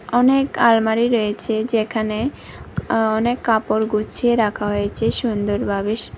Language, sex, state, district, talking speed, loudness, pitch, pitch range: Bengali, female, Tripura, West Tripura, 115 wpm, -18 LUFS, 220 Hz, 210-235 Hz